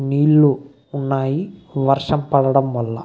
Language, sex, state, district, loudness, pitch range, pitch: Telugu, male, Karnataka, Bellary, -18 LUFS, 135-145 Hz, 140 Hz